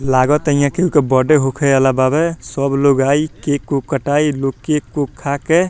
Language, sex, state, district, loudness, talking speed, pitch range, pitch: Bhojpuri, male, Bihar, Muzaffarpur, -16 LUFS, 210 wpm, 135-150 Hz, 140 Hz